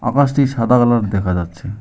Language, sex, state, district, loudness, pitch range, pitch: Bengali, male, West Bengal, Alipurduar, -16 LUFS, 100-125 Hz, 120 Hz